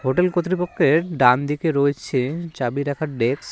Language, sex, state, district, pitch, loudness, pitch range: Bengali, male, West Bengal, Cooch Behar, 145 Hz, -21 LUFS, 130-170 Hz